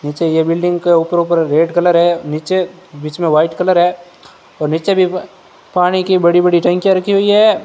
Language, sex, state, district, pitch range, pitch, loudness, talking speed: Hindi, male, Rajasthan, Bikaner, 165-185 Hz, 175 Hz, -13 LUFS, 205 wpm